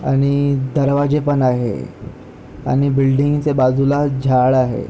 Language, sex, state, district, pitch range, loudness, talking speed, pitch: Marathi, male, Maharashtra, Pune, 130-140 Hz, -16 LUFS, 120 wpm, 135 Hz